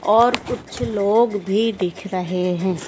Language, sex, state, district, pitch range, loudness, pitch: Hindi, female, Madhya Pradesh, Dhar, 180-220 Hz, -20 LUFS, 195 Hz